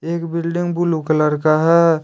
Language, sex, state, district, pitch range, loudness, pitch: Hindi, male, Jharkhand, Deoghar, 155-170 Hz, -17 LUFS, 165 Hz